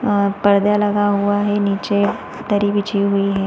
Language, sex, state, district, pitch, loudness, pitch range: Hindi, female, Chhattisgarh, Balrampur, 205 Hz, -17 LUFS, 200-205 Hz